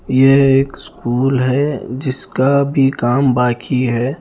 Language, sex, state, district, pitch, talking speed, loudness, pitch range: Hindi, male, Punjab, Fazilka, 130 Hz, 130 wpm, -15 LUFS, 125-135 Hz